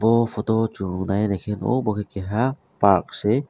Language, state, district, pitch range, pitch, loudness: Kokborok, Tripura, West Tripura, 100-115 Hz, 105 Hz, -23 LUFS